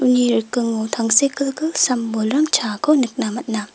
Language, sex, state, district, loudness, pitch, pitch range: Garo, female, Meghalaya, West Garo Hills, -18 LUFS, 245 Hz, 225-275 Hz